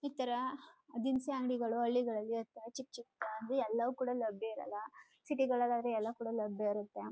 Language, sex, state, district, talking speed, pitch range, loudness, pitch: Kannada, female, Karnataka, Chamarajanagar, 120 wpm, 225-260 Hz, -38 LUFS, 235 Hz